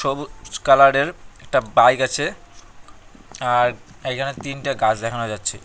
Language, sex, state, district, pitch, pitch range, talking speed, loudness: Bengali, male, West Bengal, Cooch Behar, 135 Hz, 115-140 Hz, 115 wpm, -19 LUFS